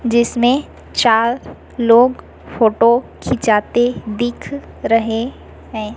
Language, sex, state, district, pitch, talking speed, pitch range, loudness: Hindi, female, Chhattisgarh, Raipur, 235 Hz, 80 wpm, 225-245 Hz, -16 LUFS